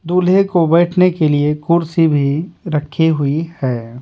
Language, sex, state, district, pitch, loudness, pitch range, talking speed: Hindi, male, Bihar, Patna, 160 Hz, -15 LUFS, 145-175 Hz, 150 wpm